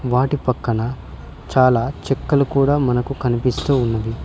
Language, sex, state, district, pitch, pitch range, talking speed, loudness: Telugu, male, Telangana, Mahabubabad, 125 Hz, 115-135 Hz, 115 wpm, -19 LUFS